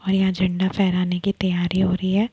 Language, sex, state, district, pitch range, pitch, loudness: Hindi, female, Chhattisgarh, Bilaspur, 180-195 Hz, 190 Hz, -21 LUFS